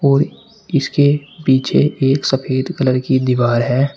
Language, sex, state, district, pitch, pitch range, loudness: Hindi, male, Uttar Pradesh, Shamli, 135 Hz, 130-145 Hz, -16 LUFS